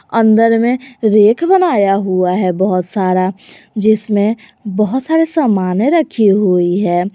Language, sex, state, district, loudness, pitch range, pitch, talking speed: Hindi, female, Jharkhand, Garhwa, -13 LUFS, 190-230 Hz, 210 Hz, 125 wpm